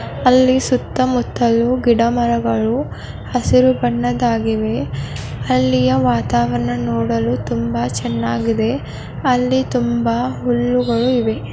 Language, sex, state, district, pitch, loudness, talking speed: Kannada, female, Karnataka, Belgaum, 220 Hz, -17 LUFS, 85 wpm